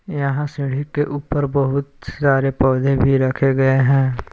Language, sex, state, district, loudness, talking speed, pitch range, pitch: Hindi, male, Jharkhand, Palamu, -18 LUFS, 150 wpm, 135-140 Hz, 135 Hz